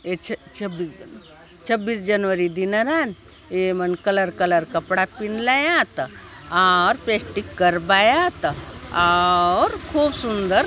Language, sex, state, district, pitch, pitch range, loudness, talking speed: Halbi, female, Chhattisgarh, Bastar, 190 Hz, 180-225 Hz, -20 LUFS, 105 wpm